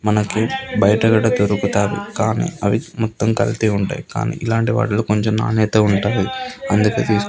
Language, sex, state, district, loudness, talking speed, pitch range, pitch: Telugu, male, Andhra Pradesh, Krishna, -18 LUFS, 150 wpm, 105-115 Hz, 110 Hz